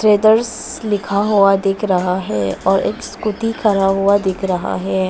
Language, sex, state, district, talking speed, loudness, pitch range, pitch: Hindi, female, Arunachal Pradesh, Papum Pare, 165 wpm, -16 LUFS, 185-210 Hz, 195 Hz